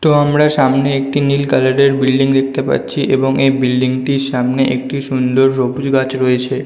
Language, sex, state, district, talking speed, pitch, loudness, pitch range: Bengali, male, West Bengal, North 24 Parganas, 180 wpm, 135 Hz, -14 LUFS, 130-140 Hz